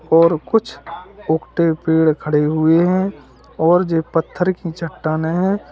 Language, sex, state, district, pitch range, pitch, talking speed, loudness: Hindi, male, Uttar Pradesh, Lalitpur, 155-180 Hz, 165 Hz, 135 wpm, -17 LUFS